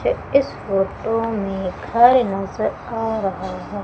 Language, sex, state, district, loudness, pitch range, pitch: Hindi, female, Madhya Pradesh, Umaria, -20 LUFS, 195-235 Hz, 220 Hz